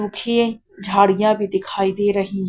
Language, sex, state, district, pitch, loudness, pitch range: Hindi, female, Punjab, Kapurthala, 200 Hz, -19 LUFS, 195-210 Hz